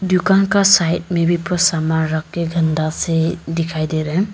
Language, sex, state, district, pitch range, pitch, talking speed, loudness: Hindi, female, Arunachal Pradesh, Papum Pare, 160-180 Hz, 165 Hz, 195 wpm, -17 LUFS